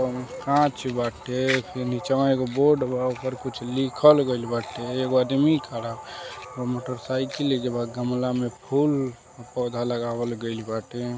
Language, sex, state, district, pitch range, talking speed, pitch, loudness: Bhojpuri, male, Uttar Pradesh, Deoria, 120-130 Hz, 135 wpm, 125 Hz, -25 LUFS